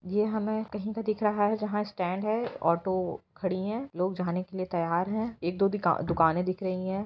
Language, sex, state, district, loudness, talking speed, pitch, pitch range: Hindi, female, Bihar, Vaishali, -29 LUFS, 220 wpm, 190 Hz, 180-210 Hz